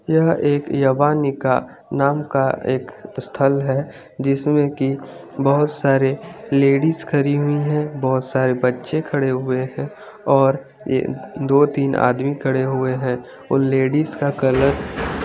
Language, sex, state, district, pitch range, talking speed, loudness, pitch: Hindi, male, Chandigarh, Chandigarh, 130-145 Hz, 140 wpm, -19 LUFS, 140 Hz